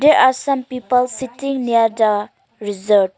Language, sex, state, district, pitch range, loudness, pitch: English, female, Arunachal Pradesh, Lower Dibang Valley, 210-260 Hz, -17 LUFS, 250 Hz